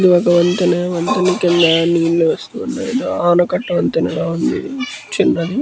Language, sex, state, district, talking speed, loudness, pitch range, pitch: Telugu, male, Andhra Pradesh, Krishna, 115 wpm, -16 LUFS, 175-240 Hz, 180 Hz